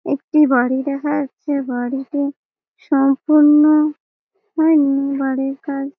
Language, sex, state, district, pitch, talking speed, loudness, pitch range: Bengali, female, West Bengal, Malda, 280 Hz, 100 wpm, -17 LUFS, 275-300 Hz